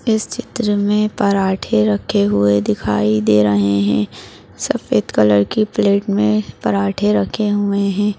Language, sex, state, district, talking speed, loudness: Hindi, female, Maharashtra, Dhule, 140 wpm, -16 LUFS